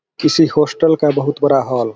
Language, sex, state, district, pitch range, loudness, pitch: Hindi, male, Bihar, Vaishali, 135-155 Hz, -14 LUFS, 145 Hz